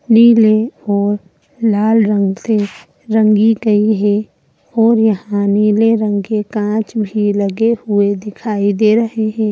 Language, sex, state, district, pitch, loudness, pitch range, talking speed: Hindi, female, Madhya Pradesh, Bhopal, 215 Hz, -14 LUFS, 205-220 Hz, 130 wpm